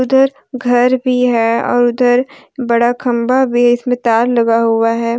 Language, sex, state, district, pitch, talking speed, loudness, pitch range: Hindi, female, Jharkhand, Deoghar, 245 Hz, 160 wpm, -13 LUFS, 235-255 Hz